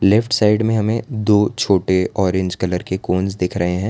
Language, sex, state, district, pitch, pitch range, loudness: Hindi, male, Gujarat, Valsad, 95 Hz, 90-105 Hz, -18 LUFS